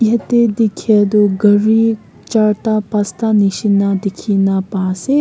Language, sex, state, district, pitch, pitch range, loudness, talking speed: Nagamese, female, Nagaland, Kohima, 210 Hz, 200-225 Hz, -14 LUFS, 125 wpm